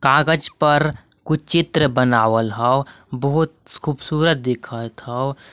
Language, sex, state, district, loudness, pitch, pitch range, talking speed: Magahi, male, Jharkhand, Palamu, -19 LUFS, 140 Hz, 120-155 Hz, 110 wpm